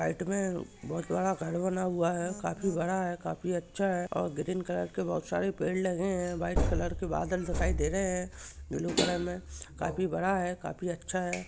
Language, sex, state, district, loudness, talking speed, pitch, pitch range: Hindi, male, Maharashtra, Pune, -32 LUFS, 210 wpm, 180 Hz, 170-185 Hz